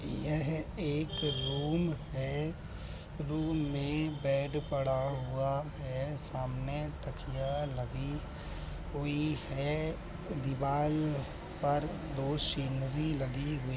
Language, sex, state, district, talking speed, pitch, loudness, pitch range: Hindi, male, Uttar Pradesh, Budaun, 100 wpm, 145 Hz, -34 LUFS, 135-150 Hz